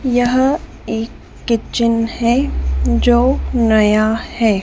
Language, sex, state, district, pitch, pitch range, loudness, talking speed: Hindi, female, Madhya Pradesh, Dhar, 230 Hz, 215-245 Hz, -16 LUFS, 90 wpm